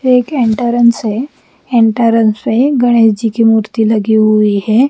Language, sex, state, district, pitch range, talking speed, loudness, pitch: Hindi, female, Bihar, Patna, 220-240 Hz, 160 wpm, -11 LUFS, 230 Hz